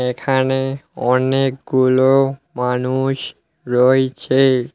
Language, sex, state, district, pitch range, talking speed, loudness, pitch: Bengali, male, West Bengal, Alipurduar, 130-135 Hz, 50 wpm, -17 LUFS, 130 Hz